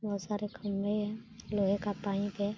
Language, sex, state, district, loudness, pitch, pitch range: Hindi, female, Bihar, Saran, -34 LUFS, 205 Hz, 200-210 Hz